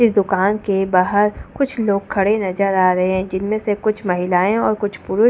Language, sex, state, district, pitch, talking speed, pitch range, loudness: Hindi, female, Delhi, New Delhi, 200 Hz, 215 wpm, 190-210 Hz, -18 LUFS